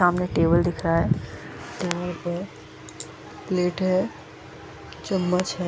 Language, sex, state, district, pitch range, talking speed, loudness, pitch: Hindi, female, Chhattisgarh, Balrampur, 165-180 Hz, 125 wpm, -24 LUFS, 175 Hz